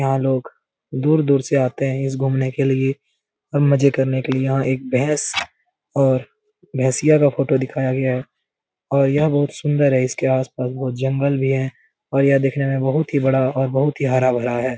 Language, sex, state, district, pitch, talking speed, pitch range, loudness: Hindi, male, Bihar, Lakhisarai, 135 Hz, 210 wpm, 130-140 Hz, -19 LUFS